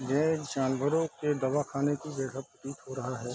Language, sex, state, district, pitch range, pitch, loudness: Hindi, male, Bihar, East Champaran, 130-150 Hz, 140 Hz, -31 LUFS